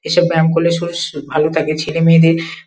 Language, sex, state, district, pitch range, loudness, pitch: Bengali, female, West Bengal, Kolkata, 155-170 Hz, -14 LUFS, 165 Hz